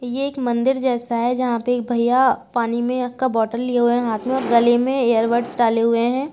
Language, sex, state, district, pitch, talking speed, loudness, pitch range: Hindi, female, Uttar Pradesh, Jalaun, 240 Hz, 235 wpm, -19 LUFS, 235-255 Hz